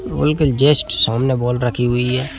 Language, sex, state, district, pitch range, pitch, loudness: Hindi, male, Madhya Pradesh, Bhopal, 120-135 Hz, 125 Hz, -16 LUFS